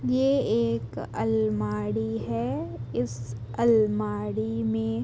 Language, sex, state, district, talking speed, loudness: Hindi, female, Uttar Pradesh, Jalaun, 95 wpm, -27 LUFS